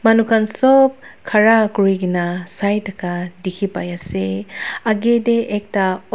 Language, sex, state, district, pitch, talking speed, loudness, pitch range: Nagamese, female, Nagaland, Dimapur, 205 Hz, 145 wpm, -17 LUFS, 180-225 Hz